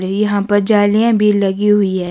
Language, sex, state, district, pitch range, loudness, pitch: Hindi, female, Himachal Pradesh, Shimla, 195-210 Hz, -13 LUFS, 205 Hz